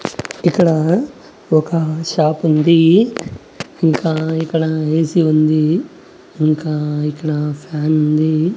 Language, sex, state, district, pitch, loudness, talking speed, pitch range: Telugu, male, Andhra Pradesh, Annamaya, 160 Hz, -16 LUFS, 75 wpm, 155-170 Hz